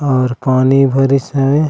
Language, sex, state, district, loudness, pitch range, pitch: Chhattisgarhi, male, Chhattisgarh, Raigarh, -13 LUFS, 130-140 Hz, 135 Hz